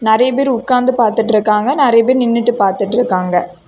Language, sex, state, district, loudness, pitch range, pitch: Tamil, female, Tamil Nadu, Kanyakumari, -13 LUFS, 210-250 Hz, 230 Hz